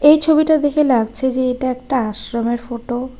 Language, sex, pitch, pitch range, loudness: Bengali, female, 255 Hz, 240-290 Hz, -17 LUFS